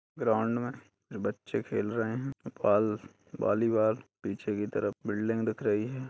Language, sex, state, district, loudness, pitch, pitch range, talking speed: Hindi, male, Uttar Pradesh, Budaun, -31 LUFS, 110 Hz, 105-120 Hz, 145 wpm